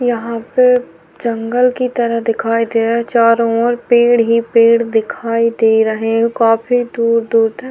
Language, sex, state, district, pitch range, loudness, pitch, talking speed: Hindi, female, Uttar Pradesh, Hamirpur, 230-240 Hz, -14 LUFS, 230 Hz, 170 wpm